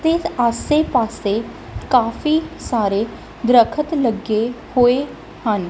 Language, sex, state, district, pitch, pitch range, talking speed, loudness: Punjabi, female, Punjab, Kapurthala, 245 Hz, 225-295 Hz, 95 wpm, -18 LUFS